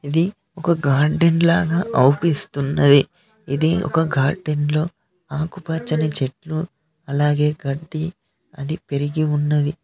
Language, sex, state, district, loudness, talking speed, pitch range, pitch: Telugu, male, Telangana, Mahabubabad, -20 LUFS, 95 wpm, 145-170 Hz, 155 Hz